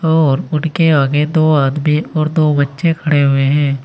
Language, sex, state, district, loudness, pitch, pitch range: Hindi, male, Uttar Pradesh, Saharanpur, -14 LUFS, 150 Hz, 140-160 Hz